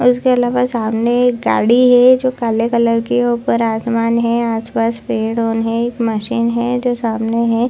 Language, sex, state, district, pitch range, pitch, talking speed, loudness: Hindi, female, Chhattisgarh, Bilaspur, 230-245 Hz, 235 Hz, 195 wpm, -15 LUFS